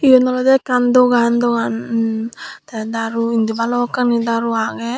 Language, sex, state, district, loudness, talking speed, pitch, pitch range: Chakma, female, Tripura, Dhalai, -16 LUFS, 145 wpm, 235 Hz, 230-250 Hz